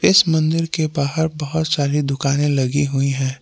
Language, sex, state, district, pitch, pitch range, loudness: Hindi, male, Jharkhand, Palamu, 145 Hz, 140-160 Hz, -19 LUFS